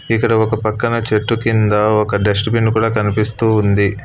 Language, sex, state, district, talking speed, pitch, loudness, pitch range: Telugu, male, Telangana, Hyderabad, 165 wpm, 110 Hz, -15 LUFS, 105-115 Hz